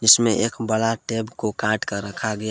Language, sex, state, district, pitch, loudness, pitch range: Hindi, male, Jharkhand, Palamu, 110 Hz, -22 LUFS, 110-115 Hz